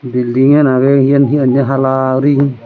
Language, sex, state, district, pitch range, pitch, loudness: Chakma, male, Tripura, Dhalai, 130-140 Hz, 135 Hz, -11 LUFS